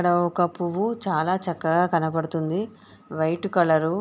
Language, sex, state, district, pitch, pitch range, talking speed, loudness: Telugu, female, Andhra Pradesh, Guntur, 175 Hz, 160-185 Hz, 120 wpm, -24 LUFS